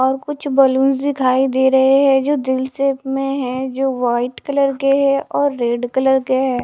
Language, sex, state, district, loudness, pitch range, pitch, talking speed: Hindi, female, Haryana, Charkhi Dadri, -17 LUFS, 260-275 Hz, 265 Hz, 200 wpm